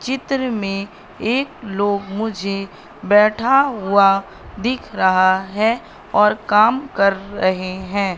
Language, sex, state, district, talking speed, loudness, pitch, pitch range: Hindi, female, Madhya Pradesh, Katni, 110 wpm, -18 LUFS, 205 Hz, 195-230 Hz